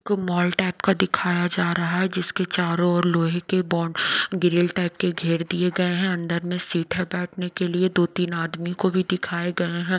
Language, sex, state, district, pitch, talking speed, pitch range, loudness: Hindi, female, Odisha, Nuapada, 175 Hz, 215 wpm, 175-185 Hz, -23 LUFS